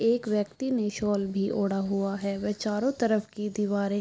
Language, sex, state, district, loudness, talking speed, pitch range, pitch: Hindi, female, Chhattisgarh, Bilaspur, -28 LUFS, 210 wpm, 200-215 Hz, 210 Hz